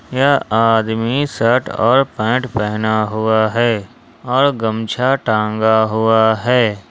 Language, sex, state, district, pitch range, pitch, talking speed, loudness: Hindi, male, Jharkhand, Ranchi, 110-125 Hz, 110 Hz, 115 wpm, -15 LUFS